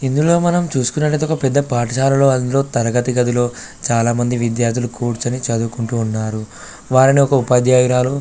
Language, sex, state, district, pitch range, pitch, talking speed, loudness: Telugu, male, Telangana, Karimnagar, 120-135 Hz, 125 Hz, 140 wpm, -16 LUFS